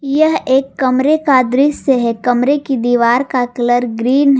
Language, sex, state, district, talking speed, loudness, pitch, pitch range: Hindi, female, Jharkhand, Garhwa, 175 wpm, -14 LUFS, 260 Hz, 245-275 Hz